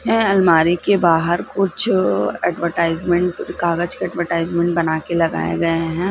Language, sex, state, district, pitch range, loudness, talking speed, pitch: Hindi, female, Bihar, Lakhisarai, 165-180 Hz, -18 LUFS, 145 wpm, 170 Hz